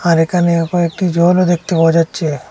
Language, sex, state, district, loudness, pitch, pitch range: Bengali, male, Assam, Hailakandi, -14 LUFS, 170 Hz, 165-175 Hz